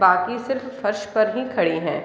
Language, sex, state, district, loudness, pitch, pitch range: Hindi, female, Bihar, East Champaran, -22 LUFS, 215 Hz, 185-250 Hz